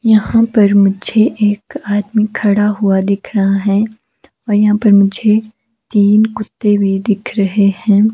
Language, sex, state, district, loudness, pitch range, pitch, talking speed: Hindi, female, Himachal Pradesh, Shimla, -13 LUFS, 200-220 Hz, 210 Hz, 145 wpm